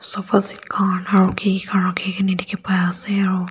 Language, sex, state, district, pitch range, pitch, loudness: Nagamese, female, Nagaland, Dimapur, 185-200 Hz, 190 Hz, -19 LUFS